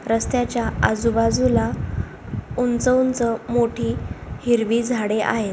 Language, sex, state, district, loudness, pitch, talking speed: Marathi, female, Maharashtra, Solapur, -21 LUFS, 225 Hz, 85 wpm